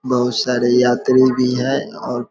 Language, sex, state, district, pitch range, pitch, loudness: Hindi, male, Bihar, Vaishali, 125-130 Hz, 125 Hz, -16 LUFS